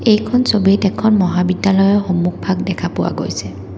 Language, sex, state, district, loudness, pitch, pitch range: Assamese, female, Assam, Kamrup Metropolitan, -16 LUFS, 190 Hz, 180-205 Hz